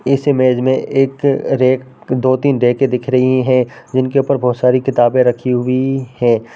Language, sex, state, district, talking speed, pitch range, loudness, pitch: Hindi, female, Bihar, Darbhanga, 175 wpm, 125-135 Hz, -14 LUFS, 130 Hz